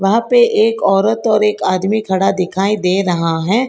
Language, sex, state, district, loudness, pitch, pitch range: Hindi, female, Karnataka, Bangalore, -14 LUFS, 195 Hz, 185-220 Hz